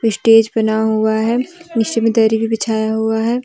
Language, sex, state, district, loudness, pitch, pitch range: Hindi, female, Jharkhand, Deoghar, -15 LUFS, 225 Hz, 220-230 Hz